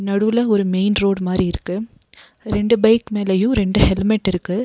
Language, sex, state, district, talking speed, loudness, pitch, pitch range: Tamil, female, Tamil Nadu, Nilgiris, 155 wpm, -18 LUFS, 200 Hz, 190-220 Hz